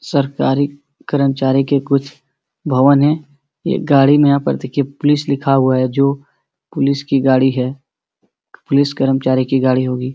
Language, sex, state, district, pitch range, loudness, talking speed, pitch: Hindi, male, Bihar, Supaul, 135-140 Hz, -15 LUFS, 165 wpm, 140 Hz